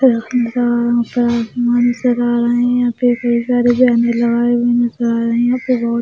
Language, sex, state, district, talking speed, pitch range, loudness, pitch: Hindi, female, Maharashtra, Mumbai Suburban, 90 wpm, 235-245 Hz, -15 LUFS, 240 Hz